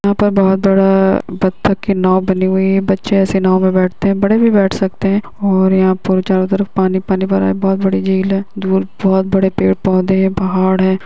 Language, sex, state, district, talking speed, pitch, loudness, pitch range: Hindi, female, Bihar, Bhagalpur, 205 wpm, 190 Hz, -14 LUFS, 190-195 Hz